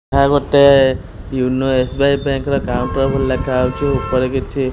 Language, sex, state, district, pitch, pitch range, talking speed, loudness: Odia, male, Odisha, Khordha, 135 Hz, 130-140 Hz, 165 wpm, -16 LUFS